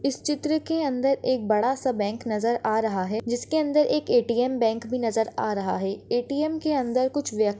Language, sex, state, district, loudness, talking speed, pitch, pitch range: Hindi, female, Maharashtra, Pune, -25 LUFS, 220 wpm, 245 Hz, 220-285 Hz